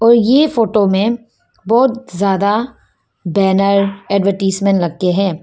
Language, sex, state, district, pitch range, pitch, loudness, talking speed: Hindi, female, Arunachal Pradesh, Papum Pare, 195-230 Hz, 200 Hz, -14 LUFS, 110 wpm